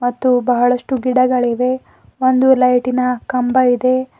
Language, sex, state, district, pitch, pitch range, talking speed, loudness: Kannada, female, Karnataka, Bidar, 255 Hz, 245-255 Hz, 100 wpm, -15 LUFS